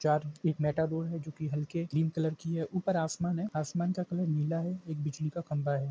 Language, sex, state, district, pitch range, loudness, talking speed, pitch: Hindi, male, Jharkhand, Jamtara, 150-170 Hz, -33 LUFS, 245 wpm, 160 Hz